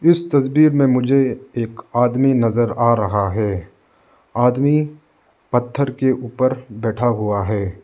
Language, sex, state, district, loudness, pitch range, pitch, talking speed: Hindi, male, Arunachal Pradesh, Lower Dibang Valley, -18 LUFS, 110-135 Hz, 125 Hz, 130 wpm